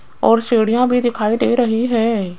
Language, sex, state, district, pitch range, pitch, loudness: Hindi, female, Rajasthan, Jaipur, 220-245 Hz, 230 Hz, -16 LUFS